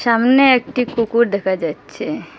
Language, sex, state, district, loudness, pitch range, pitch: Bengali, female, Assam, Hailakandi, -16 LUFS, 190-250 Hz, 235 Hz